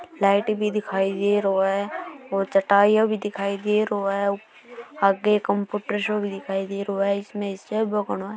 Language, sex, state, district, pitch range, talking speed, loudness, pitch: Marwari, female, Rajasthan, Churu, 195-210 Hz, 160 wpm, -23 LUFS, 205 Hz